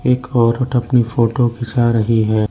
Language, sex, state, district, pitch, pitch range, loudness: Hindi, male, Arunachal Pradesh, Lower Dibang Valley, 120 Hz, 115-125 Hz, -16 LUFS